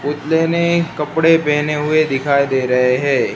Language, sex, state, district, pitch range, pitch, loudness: Hindi, male, Gujarat, Gandhinagar, 140-160 Hz, 150 Hz, -15 LUFS